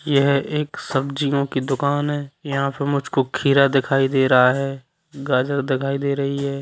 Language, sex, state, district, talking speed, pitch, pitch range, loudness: Hindi, male, Bihar, Sitamarhi, 170 wpm, 140 Hz, 135-140 Hz, -20 LUFS